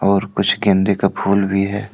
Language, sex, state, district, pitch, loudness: Hindi, male, Jharkhand, Deoghar, 100 Hz, -17 LUFS